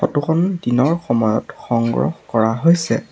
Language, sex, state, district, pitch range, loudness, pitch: Assamese, male, Assam, Sonitpur, 115-170 Hz, -18 LUFS, 130 Hz